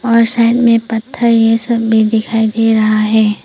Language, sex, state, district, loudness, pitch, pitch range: Hindi, female, Arunachal Pradesh, Papum Pare, -12 LUFS, 225 Hz, 220-230 Hz